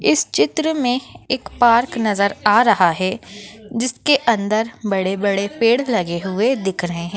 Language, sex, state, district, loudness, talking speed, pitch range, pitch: Hindi, female, Maharashtra, Nagpur, -18 LUFS, 160 wpm, 195-240 Hz, 215 Hz